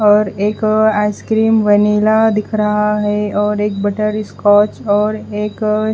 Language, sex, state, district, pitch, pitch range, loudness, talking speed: Hindi, female, Bihar, West Champaran, 210 Hz, 210-215 Hz, -14 LUFS, 140 wpm